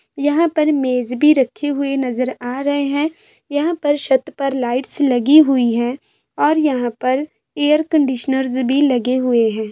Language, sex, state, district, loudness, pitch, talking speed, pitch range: Hindi, female, Bihar, Sitamarhi, -17 LUFS, 275 Hz, 175 wpm, 255-295 Hz